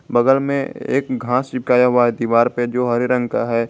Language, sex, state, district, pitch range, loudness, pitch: Hindi, male, Jharkhand, Garhwa, 120-130 Hz, -18 LUFS, 125 Hz